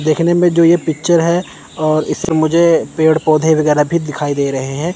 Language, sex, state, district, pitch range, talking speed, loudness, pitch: Hindi, male, Chandigarh, Chandigarh, 150-170 Hz, 205 wpm, -14 LUFS, 160 Hz